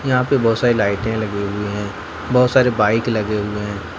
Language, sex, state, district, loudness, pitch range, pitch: Hindi, male, Jharkhand, Ranchi, -18 LUFS, 105-120 Hz, 105 Hz